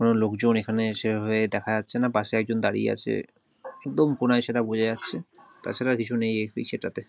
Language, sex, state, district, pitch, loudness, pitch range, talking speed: Bengali, male, West Bengal, North 24 Parganas, 115 Hz, -26 LUFS, 110-120 Hz, 195 wpm